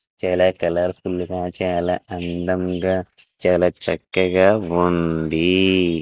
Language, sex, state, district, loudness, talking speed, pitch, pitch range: Telugu, male, Andhra Pradesh, Visakhapatnam, -20 LUFS, 90 wpm, 90 Hz, 85-95 Hz